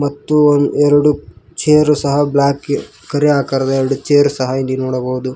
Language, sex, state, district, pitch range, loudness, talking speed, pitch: Kannada, male, Karnataka, Koppal, 130-145 Hz, -14 LUFS, 135 wpm, 140 Hz